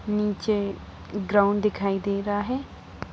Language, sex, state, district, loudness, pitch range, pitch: Hindi, female, Bihar, Saran, -26 LUFS, 200-210 Hz, 205 Hz